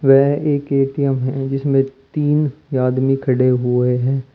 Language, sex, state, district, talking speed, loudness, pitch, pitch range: Hindi, male, Uttar Pradesh, Shamli, 140 wpm, -17 LUFS, 135 Hz, 130-140 Hz